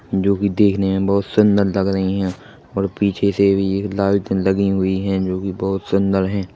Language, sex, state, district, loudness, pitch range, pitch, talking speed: Hindi, male, Chhattisgarh, Bilaspur, -18 LUFS, 95-100 Hz, 95 Hz, 210 wpm